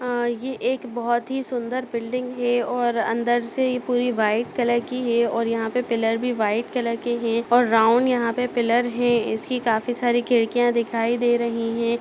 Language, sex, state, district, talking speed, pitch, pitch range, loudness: Hindi, female, Chhattisgarh, Kabirdham, 200 wpm, 240 Hz, 230-245 Hz, -22 LUFS